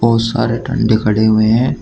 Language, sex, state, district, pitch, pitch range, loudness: Hindi, male, Uttar Pradesh, Shamli, 115 Hz, 110-115 Hz, -14 LUFS